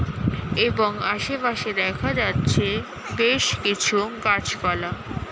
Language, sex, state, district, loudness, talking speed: Bengali, female, West Bengal, Paschim Medinipur, -22 LUFS, 80 wpm